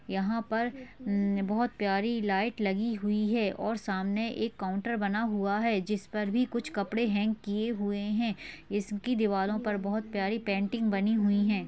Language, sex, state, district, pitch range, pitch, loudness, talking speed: Hindi, female, Maharashtra, Pune, 200-225 Hz, 210 Hz, -30 LUFS, 175 wpm